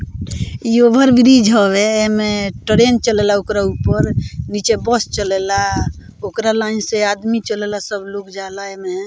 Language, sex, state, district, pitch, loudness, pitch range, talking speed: Bhojpuri, female, Bihar, Muzaffarpur, 210 Hz, -15 LUFS, 200-225 Hz, 130 wpm